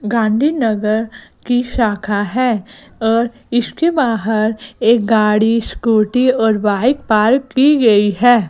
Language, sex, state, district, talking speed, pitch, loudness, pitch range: Hindi, female, Gujarat, Gandhinagar, 115 wpm, 225 Hz, -15 LUFS, 215-250 Hz